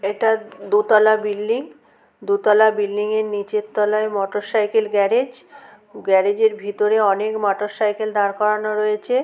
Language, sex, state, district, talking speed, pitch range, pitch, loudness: Bengali, female, West Bengal, North 24 Parganas, 115 wpm, 205-215 Hz, 210 Hz, -19 LUFS